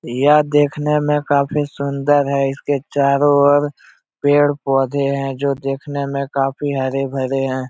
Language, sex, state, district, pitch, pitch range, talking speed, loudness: Hindi, male, Bihar, Jahanabad, 140 Hz, 135-145 Hz, 130 wpm, -17 LUFS